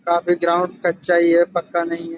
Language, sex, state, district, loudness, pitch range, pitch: Hindi, male, Uttar Pradesh, Budaun, -18 LUFS, 170-175 Hz, 170 Hz